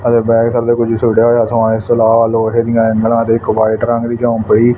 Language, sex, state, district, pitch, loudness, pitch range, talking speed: Punjabi, male, Punjab, Fazilka, 115 Hz, -12 LUFS, 115-120 Hz, 240 wpm